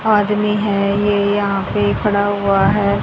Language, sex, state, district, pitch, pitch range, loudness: Hindi, female, Haryana, Charkhi Dadri, 200 Hz, 200-205 Hz, -16 LUFS